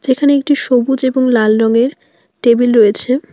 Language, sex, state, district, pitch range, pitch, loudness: Bengali, female, West Bengal, Alipurduar, 235-265 Hz, 250 Hz, -12 LUFS